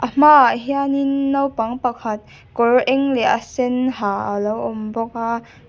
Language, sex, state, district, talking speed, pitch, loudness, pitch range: Mizo, female, Mizoram, Aizawl, 160 wpm, 245 Hz, -18 LUFS, 230-275 Hz